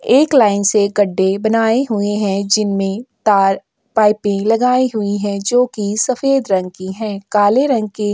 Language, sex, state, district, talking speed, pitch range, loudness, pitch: Hindi, female, Uttarakhand, Tehri Garhwal, 160 wpm, 200-230 Hz, -15 LUFS, 210 Hz